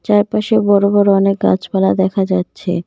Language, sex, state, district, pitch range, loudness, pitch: Bengali, female, West Bengal, Cooch Behar, 190-205 Hz, -14 LUFS, 200 Hz